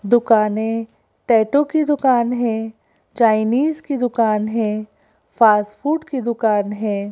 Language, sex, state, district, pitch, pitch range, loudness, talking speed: Hindi, female, Madhya Pradesh, Bhopal, 225 Hz, 215-255 Hz, -18 LUFS, 120 wpm